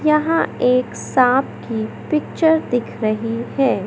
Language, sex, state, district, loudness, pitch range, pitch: Hindi, male, Madhya Pradesh, Katni, -19 LUFS, 235-305 Hz, 255 Hz